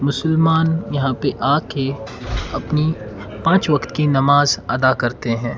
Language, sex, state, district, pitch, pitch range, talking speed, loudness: Hindi, male, Karnataka, Bangalore, 140 Hz, 120-155 Hz, 140 wpm, -18 LUFS